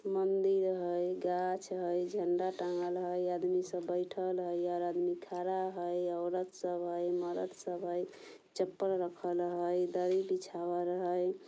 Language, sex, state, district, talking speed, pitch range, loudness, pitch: Bajjika, female, Bihar, Vaishali, 145 wpm, 175-185 Hz, -35 LUFS, 180 Hz